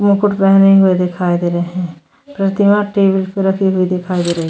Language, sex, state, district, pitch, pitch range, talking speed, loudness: Hindi, female, Goa, North and South Goa, 190 Hz, 180-195 Hz, 215 wpm, -14 LUFS